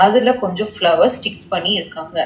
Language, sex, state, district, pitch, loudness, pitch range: Tamil, female, Tamil Nadu, Chennai, 190 Hz, -17 LUFS, 165-215 Hz